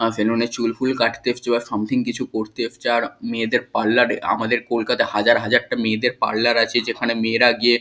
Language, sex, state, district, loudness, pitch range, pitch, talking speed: Bengali, male, West Bengal, Kolkata, -20 LUFS, 115-120 Hz, 115 Hz, 190 wpm